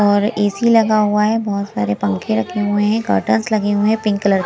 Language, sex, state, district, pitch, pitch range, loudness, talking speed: Hindi, female, Himachal Pradesh, Shimla, 205 Hz, 190-215 Hz, -16 LUFS, 240 wpm